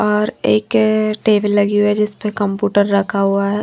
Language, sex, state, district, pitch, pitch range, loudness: Hindi, female, Maharashtra, Washim, 205 Hz, 200-210 Hz, -16 LUFS